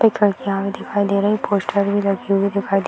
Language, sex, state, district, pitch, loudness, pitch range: Hindi, female, Bihar, Purnia, 200 Hz, -19 LUFS, 195-205 Hz